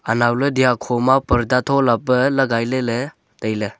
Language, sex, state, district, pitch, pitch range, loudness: Wancho, male, Arunachal Pradesh, Longding, 125 Hz, 115-130 Hz, -18 LUFS